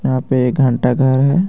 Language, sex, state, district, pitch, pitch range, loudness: Hindi, male, Jharkhand, Garhwa, 130 Hz, 130-135 Hz, -15 LUFS